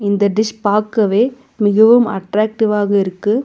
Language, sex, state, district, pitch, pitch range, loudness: Tamil, female, Tamil Nadu, Nilgiris, 215 Hz, 205-220 Hz, -15 LUFS